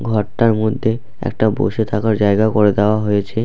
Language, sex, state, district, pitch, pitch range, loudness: Bengali, male, West Bengal, Purulia, 110 Hz, 105-110 Hz, -16 LUFS